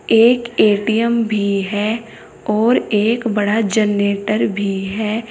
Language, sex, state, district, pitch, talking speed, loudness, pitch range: Hindi, female, Uttar Pradesh, Saharanpur, 215 Hz, 115 wpm, -17 LUFS, 205-225 Hz